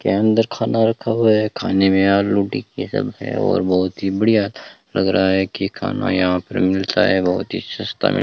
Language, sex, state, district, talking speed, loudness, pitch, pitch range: Hindi, male, Rajasthan, Bikaner, 210 wpm, -18 LUFS, 100 Hz, 95-110 Hz